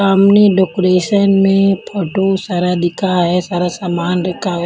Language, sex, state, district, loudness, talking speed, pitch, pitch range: Hindi, female, Punjab, Kapurthala, -14 LUFS, 140 wpm, 185 Hz, 180-195 Hz